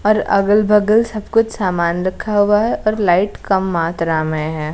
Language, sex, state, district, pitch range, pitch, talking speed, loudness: Hindi, female, Bihar, Patna, 170-215 Hz, 200 Hz, 175 wpm, -16 LUFS